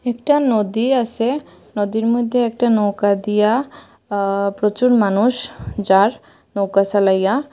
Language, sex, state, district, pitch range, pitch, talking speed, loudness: Bengali, female, Assam, Hailakandi, 200-245 Hz, 220 Hz, 110 wpm, -17 LUFS